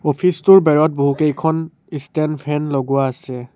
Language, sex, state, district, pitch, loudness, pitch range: Assamese, male, Assam, Sonitpur, 150 Hz, -16 LUFS, 140-160 Hz